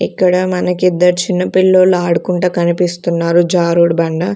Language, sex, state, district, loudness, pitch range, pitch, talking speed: Telugu, female, Andhra Pradesh, Sri Satya Sai, -13 LUFS, 170-180 Hz, 180 Hz, 85 wpm